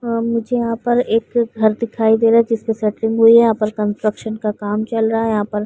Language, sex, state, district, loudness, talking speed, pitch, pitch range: Hindi, female, Uttar Pradesh, Varanasi, -17 LUFS, 265 wpm, 225 Hz, 215-230 Hz